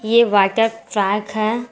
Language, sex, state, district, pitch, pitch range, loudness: Hindi, female, Jharkhand, Garhwa, 220 Hz, 205-225 Hz, -18 LUFS